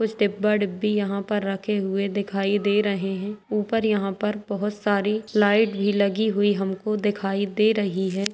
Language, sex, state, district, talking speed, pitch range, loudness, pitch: Hindi, male, Bihar, Araria, 175 wpm, 200-210 Hz, -23 LUFS, 205 Hz